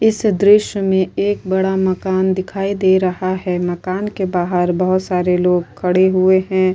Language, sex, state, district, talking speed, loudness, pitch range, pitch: Hindi, female, Maharashtra, Chandrapur, 175 wpm, -16 LUFS, 180-190 Hz, 190 Hz